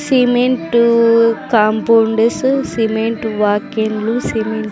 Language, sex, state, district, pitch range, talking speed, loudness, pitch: Telugu, female, Andhra Pradesh, Sri Satya Sai, 220-235 Hz, 90 wpm, -14 LUFS, 225 Hz